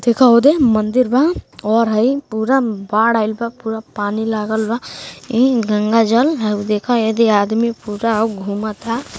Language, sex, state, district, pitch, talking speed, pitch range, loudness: Bhojpuri, female, Uttar Pradesh, Gorakhpur, 225 Hz, 165 wpm, 215-240 Hz, -16 LUFS